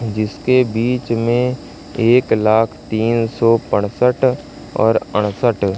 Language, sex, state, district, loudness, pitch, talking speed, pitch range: Hindi, male, Madhya Pradesh, Katni, -16 LUFS, 115 Hz, 105 wpm, 110-125 Hz